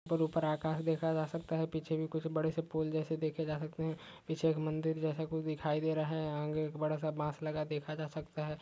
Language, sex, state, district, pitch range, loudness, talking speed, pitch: Hindi, male, Uttar Pradesh, Etah, 155-160 Hz, -36 LUFS, 250 wpm, 155 Hz